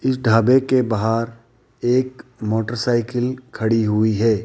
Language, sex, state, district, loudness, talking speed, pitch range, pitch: Hindi, male, Rajasthan, Jaipur, -19 LUFS, 120 wpm, 110-125 Hz, 115 Hz